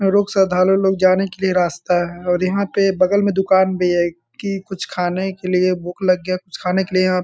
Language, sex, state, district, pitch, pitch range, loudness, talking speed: Hindi, male, Bihar, Sitamarhi, 185 Hz, 180-195 Hz, -18 LUFS, 230 wpm